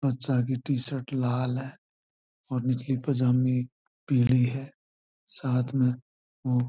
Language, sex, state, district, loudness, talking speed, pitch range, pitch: Marwari, male, Rajasthan, Churu, -27 LUFS, 125 wpm, 125-130 Hz, 125 Hz